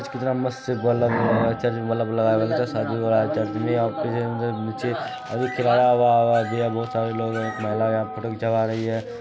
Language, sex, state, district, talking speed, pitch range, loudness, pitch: Maithili, male, Bihar, Supaul, 45 wpm, 110-120 Hz, -23 LUFS, 115 Hz